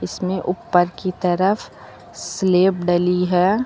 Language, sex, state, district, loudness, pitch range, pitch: Hindi, female, Uttar Pradesh, Lucknow, -19 LUFS, 180-190 Hz, 180 Hz